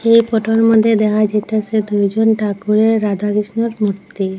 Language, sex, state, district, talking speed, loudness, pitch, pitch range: Bengali, female, Assam, Hailakandi, 135 wpm, -15 LUFS, 215 Hz, 205-225 Hz